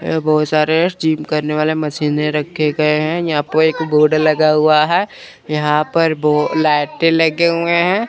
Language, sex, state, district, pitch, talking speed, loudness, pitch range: Hindi, male, Chandigarh, Chandigarh, 155 Hz, 180 wpm, -15 LUFS, 150-160 Hz